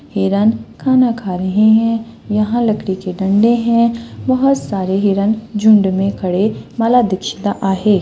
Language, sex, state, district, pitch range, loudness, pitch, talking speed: Marathi, female, Maharashtra, Sindhudurg, 195-230 Hz, -15 LUFS, 210 Hz, 140 wpm